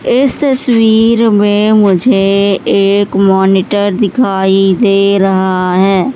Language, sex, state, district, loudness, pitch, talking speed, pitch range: Hindi, female, Madhya Pradesh, Katni, -10 LUFS, 200 Hz, 95 wpm, 195-220 Hz